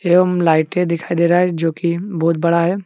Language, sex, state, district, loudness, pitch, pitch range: Hindi, male, Jharkhand, Deoghar, -16 LUFS, 170 Hz, 165-180 Hz